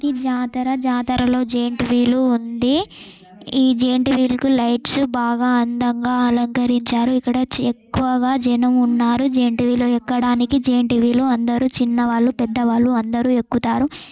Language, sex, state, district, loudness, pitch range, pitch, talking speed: Telugu, female, Telangana, Karimnagar, -18 LUFS, 240-255 Hz, 245 Hz, 130 wpm